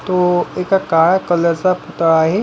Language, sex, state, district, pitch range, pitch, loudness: Marathi, male, Maharashtra, Pune, 165-185 Hz, 175 Hz, -15 LUFS